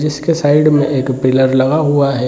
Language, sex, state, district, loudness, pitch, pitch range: Hindi, male, Bihar, Jamui, -13 LUFS, 145 Hz, 130-150 Hz